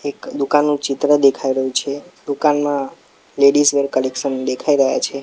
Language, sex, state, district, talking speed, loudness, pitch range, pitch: Gujarati, male, Gujarat, Gandhinagar, 150 wpm, -17 LUFS, 135-145 Hz, 140 Hz